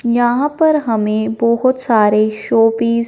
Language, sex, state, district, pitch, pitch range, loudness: Hindi, male, Punjab, Fazilka, 235 Hz, 220-245 Hz, -14 LUFS